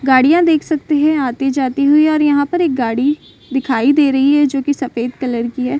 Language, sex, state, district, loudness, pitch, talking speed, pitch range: Hindi, female, Bihar, Saran, -15 LUFS, 280 Hz, 215 wpm, 260-295 Hz